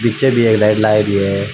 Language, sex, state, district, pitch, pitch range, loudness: Rajasthani, male, Rajasthan, Churu, 105 Hz, 100-115 Hz, -13 LUFS